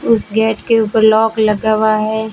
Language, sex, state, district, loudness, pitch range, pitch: Hindi, female, Rajasthan, Bikaner, -13 LUFS, 215-220 Hz, 220 Hz